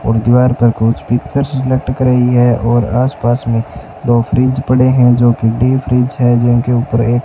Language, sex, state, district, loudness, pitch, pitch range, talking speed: Hindi, male, Rajasthan, Bikaner, -12 LUFS, 120 Hz, 120-125 Hz, 205 wpm